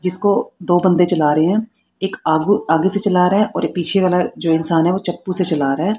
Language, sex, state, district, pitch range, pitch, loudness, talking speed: Hindi, female, Haryana, Rohtak, 165-195 Hz, 180 Hz, -16 LUFS, 250 wpm